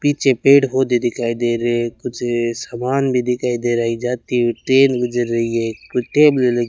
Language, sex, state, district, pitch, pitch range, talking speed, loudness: Hindi, male, Rajasthan, Bikaner, 120 Hz, 120-130 Hz, 215 wpm, -17 LUFS